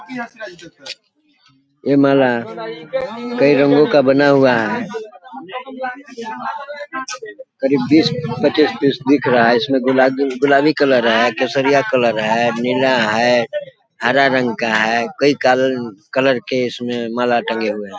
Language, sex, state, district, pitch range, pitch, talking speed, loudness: Hindi, male, Chhattisgarh, Balrampur, 120-160 Hz, 135 Hz, 125 wpm, -15 LUFS